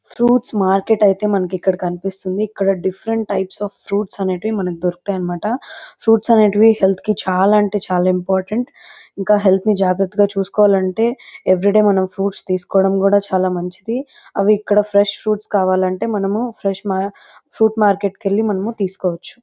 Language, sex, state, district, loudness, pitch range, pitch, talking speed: Telugu, female, Andhra Pradesh, Chittoor, -17 LUFS, 190-215 Hz, 200 Hz, 150 wpm